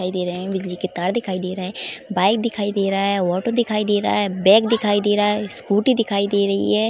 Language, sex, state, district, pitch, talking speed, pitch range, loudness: Hindi, female, Uttar Pradesh, Jalaun, 200 Hz, 270 wpm, 185-210 Hz, -19 LUFS